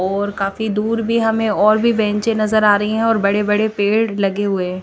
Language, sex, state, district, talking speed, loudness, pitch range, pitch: Hindi, female, Chandigarh, Chandigarh, 225 wpm, -17 LUFS, 200-220 Hz, 210 Hz